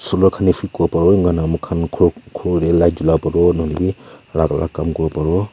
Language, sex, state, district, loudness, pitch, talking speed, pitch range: Nagamese, male, Nagaland, Kohima, -17 LUFS, 85 Hz, 205 wpm, 80-90 Hz